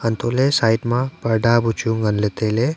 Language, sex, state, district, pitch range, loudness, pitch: Wancho, male, Arunachal Pradesh, Longding, 110-120 Hz, -19 LUFS, 115 Hz